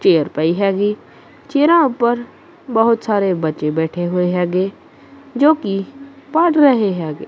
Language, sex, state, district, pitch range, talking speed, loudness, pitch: Punjabi, female, Punjab, Kapurthala, 180-280 Hz, 130 wpm, -16 LUFS, 215 Hz